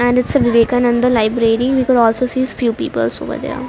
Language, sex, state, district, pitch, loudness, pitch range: English, female, Haryana, Rohtak, 245 Hz, -15 LUFS, 230-255 Hz